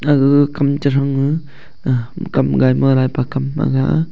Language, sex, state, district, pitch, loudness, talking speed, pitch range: Wancho, male, Arunachal Pradesh, Longding, 140 Hz, -16 LUFS, 190 wpm, 135-145 Hz